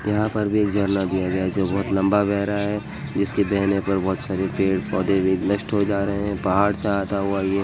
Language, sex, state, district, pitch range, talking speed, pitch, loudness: Hindi, male, Uttar Pradesh, Muzaffarnagar, 95-100 Hz, 260 wpm, 100 Hz, -22 LUFS